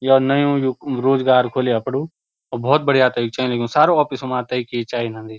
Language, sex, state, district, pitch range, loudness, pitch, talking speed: Garhwali, male, Uttarakhand, Uttarkashi, 120-135 Hz, -18 LUFS, 130 Hz, 200 wpm